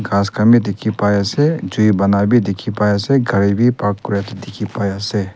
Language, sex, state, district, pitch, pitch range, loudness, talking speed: Nagamese, male, Nagaland, Kohima, 105 Hz, 100-110 Hz, -16 LUFS, 210 wpm